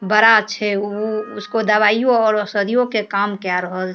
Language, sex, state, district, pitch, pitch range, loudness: Maithili, female, Bihar, Darbhanga, 210 Hz, 205-220 Hz, -17 LUFS